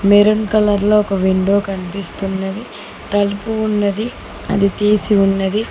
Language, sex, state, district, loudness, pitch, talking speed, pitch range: Telugu, female, Telangana, Mahabubabad, -16 LUFS, 205 Hz, 115 wpm, 195-210 Hz